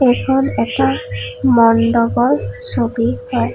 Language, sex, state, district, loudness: Assamese, female, Assam, Kamrup Metropolitan, -15 LUFS